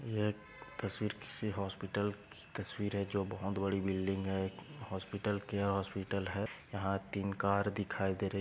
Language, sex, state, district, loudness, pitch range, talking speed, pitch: Hindi, male, Maharashtra, Nagpur, -38 LUFS, 95-105 Hz, 150 wpm, 100 Hz